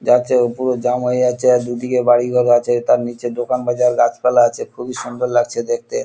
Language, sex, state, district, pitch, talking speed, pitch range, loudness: Bengali, male, West Bengal, Kolkata, 125 Hz, 200 wpm, 120-125 Hz, -16 LUFS